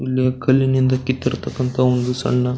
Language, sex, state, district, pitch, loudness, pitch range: Kannada, male, Karnataka, Belgaum, 130 Hz, -19 LUFS, 125-130 Hz